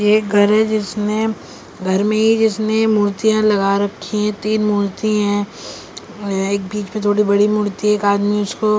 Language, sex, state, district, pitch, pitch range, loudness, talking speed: Hindi, female, Delhi, New Delhi, 210 Hz, 205-215 Hz, -17 LUFS, 165 wpm